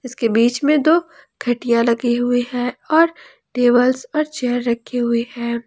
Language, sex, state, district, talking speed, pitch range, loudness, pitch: Hindi, female, Jharkhand, Ranchi, 150 wpm, 235-280 Hz, -18 LUFS, 245 Hz